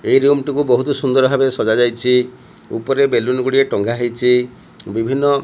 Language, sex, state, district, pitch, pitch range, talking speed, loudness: Odia, male, Odisha, Malkangiri, 130 Hz, 125-135 Hz, 155 wpm, -16 LUFS